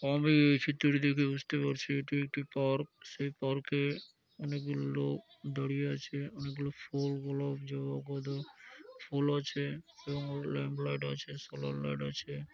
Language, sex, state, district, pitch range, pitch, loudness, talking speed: Bengali, male, West Bengal, Jalpaiguri, 135-145 Hz, 140 Hz, -35 LUFS, 140 wpm